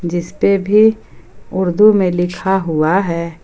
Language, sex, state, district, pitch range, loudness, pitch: Hindi, female, Jharkhand, Ranchi, 170-200 Hz, -14 LUFS, 185 Hz